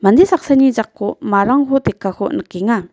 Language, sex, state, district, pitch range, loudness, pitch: Garo, female, Meghalaya, West Garo Hills, 200-270 Hz, -15 LUFS, 225 Hz